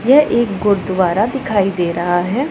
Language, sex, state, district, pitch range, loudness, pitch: Hindi, female, Punjab, Pathankot, 185-235 Hz, -16 LUFS, 200 Hz